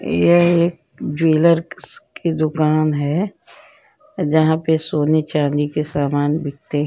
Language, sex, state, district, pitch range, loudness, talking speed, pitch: Hindi, female, Uttar Pradesh, Jyotiba Phule Nagar, 145-165 Hz, -18 LUFS, 105 wpm, 155 Hz